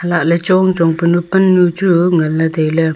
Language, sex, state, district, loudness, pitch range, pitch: Wancho, female, Arunachal Pradesh, Longding, -13 LUFS, 165-180 Hz, 170 Hz